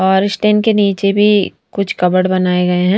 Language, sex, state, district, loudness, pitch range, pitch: Hindi, female, Punjab, Fazilka, -14 LUFS, 185-205 Hz, 195 Hz